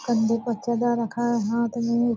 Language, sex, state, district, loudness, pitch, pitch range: Hindi, female, Bihar, Purnia, -24 LUFS, 235 Hz, 230-240 Hz